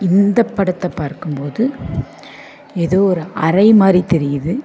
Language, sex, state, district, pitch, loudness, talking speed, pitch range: Tamil, female, Tamil Nadu, Namakkal, 185 Hz, -15 LUFS, 115 wpm, 165-200 Hz